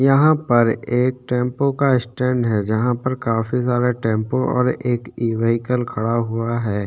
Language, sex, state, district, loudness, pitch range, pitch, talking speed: Hindi, male, Chhattisgarh, Sukma, -19 LUFS, 115-125 Hz, 125 Hz, 155 wpm